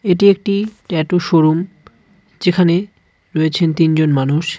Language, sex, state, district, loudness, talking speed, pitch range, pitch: Bengali, male, West Bengal, Cooch Behar, -15 LUFS, 105 wpm, 160-200 Hz, 175 Hz